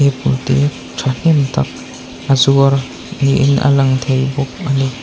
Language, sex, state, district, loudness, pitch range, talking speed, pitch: Mizo, male, Mizoram, Aizawl, -14 LUFS, 130-140 Hz, 165 wpm, 135 Hz